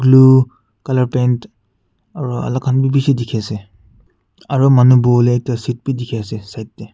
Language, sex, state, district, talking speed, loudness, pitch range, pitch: Nagamese, male, Nagaland, Kohima, 180 wpm, -15 LUFS, 110-130 Hz, 125 Hz